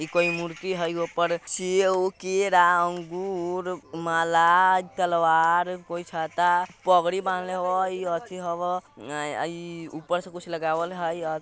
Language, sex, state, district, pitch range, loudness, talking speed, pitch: Bajjika, male, Bihar, Vaishali, 170-185 Hz, -25 LUFS, 115 wpm, 175 Hz